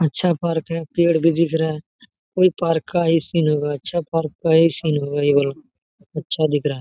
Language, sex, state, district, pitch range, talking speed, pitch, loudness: Hindi, male, Jharkhand, Jamtara, 150-170 Hz, 230 wpm, 160 Hz, -19 LUFS